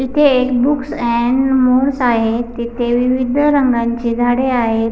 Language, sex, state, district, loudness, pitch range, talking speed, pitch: Marathi, female, Maharashtra, Pune, -15 LUFS, 235-265 Hz, 135 wpm, 250 Hz